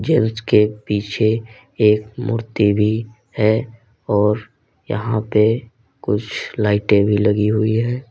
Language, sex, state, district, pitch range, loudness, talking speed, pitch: Hindi, male, Uttar Pradesh, Lalitpur, 105-115 Hz, -18 LUFS, 120 wpm, 110 Hz